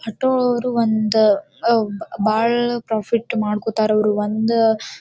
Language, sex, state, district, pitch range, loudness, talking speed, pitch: Kannada, female, Karnataka, Dharwad, 215-240 Hz, -19 LUFS, 110 wpm, 220 Hz